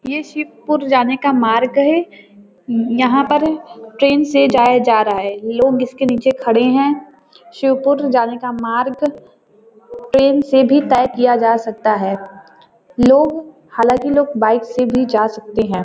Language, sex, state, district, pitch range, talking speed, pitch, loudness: Hindi, female, Uttar Pradesh, Varanasi, 230-280 Hz, 155 wpm, 255 Hz, -15 LUFS